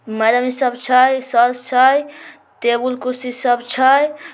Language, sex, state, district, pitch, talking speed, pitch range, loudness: Maithili, male, Bihar, Samastipur, 255 Hz, 125 wpm, 245-265 Hz, -16 LUFS